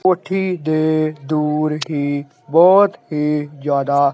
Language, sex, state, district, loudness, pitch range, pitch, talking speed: Punjabi, male, Punjab, Kapurthala, -17 LUFS, 145-170 Hz, 155 Hz, 100 wpm